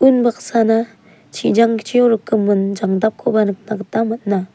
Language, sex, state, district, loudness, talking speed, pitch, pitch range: Garo, female, Meghalaya, South Garo Hills, -17 LUFS, 90 wpm, 225 Hz, 205-230 Hz